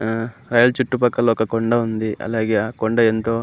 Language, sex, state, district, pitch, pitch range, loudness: Telugu, male, Andhra Pradesh, Anantapur, 115 Hz, 110-120 Hz, -19 LUFS